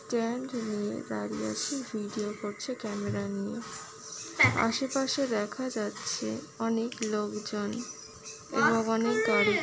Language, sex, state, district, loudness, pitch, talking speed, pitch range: Bengali, female, West Bengal, Jalpaiguri, -31 LUFS, 215 Hz, 105 wpm, 210-235 Hz